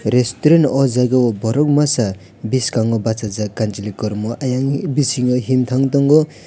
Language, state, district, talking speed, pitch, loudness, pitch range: Kokborok, Tripura, West Tripura, 130 wpm, 125 Hz, -17 LUFS, 110-140 Hz